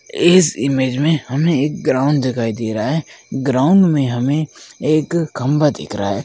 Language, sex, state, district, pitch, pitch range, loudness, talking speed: Hindi, male, Uttarakhand, Tehri Garhwal, 140 Hz, 130-155 Hz, -16 LUFS, 175 wpm